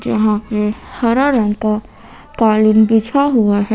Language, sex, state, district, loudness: Hindi, female, Jharkhand, Ranchi, -14 LUFS